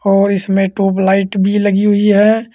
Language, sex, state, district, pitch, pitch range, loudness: Hindi, male, Uttar Pradesh, Saharanpur, 200 Hz, 195-205 Hz, -13 LUFS